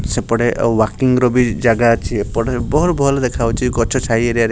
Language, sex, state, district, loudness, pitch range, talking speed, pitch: Odia, male, Odisha, Sambalpur, -16 LUFS, 115-125 Hz, 210 wpm, 120 Hz